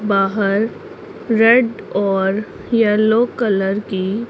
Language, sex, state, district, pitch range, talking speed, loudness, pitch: Hindi, female, Punjab, Pathankot, 195-230 Hz, 85 wpm, -17 LUFS, 215 Hz